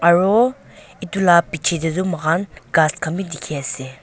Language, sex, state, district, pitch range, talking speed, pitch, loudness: Nagamese, female, Nagaland, Dimapur, 155-185 Hz, 180 wpm, 165 Hz, -19 LUFS